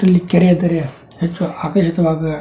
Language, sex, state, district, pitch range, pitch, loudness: Kannada, male, Karnataka, Dharwad, 160-180 Hz, 170 Hz, -16 LUFS